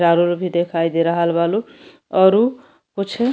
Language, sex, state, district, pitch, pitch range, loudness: Bhojpuri, female, Uttar Pradesh, Deoria, 175 Hz, 170-215 Hz, -18 LUFS